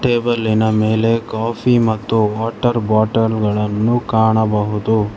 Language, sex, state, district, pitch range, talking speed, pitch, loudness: Kannada, male, Karnataka, Bangalore, 110-115 Hz, 95 wpm, 110 Hz, -16 LUFS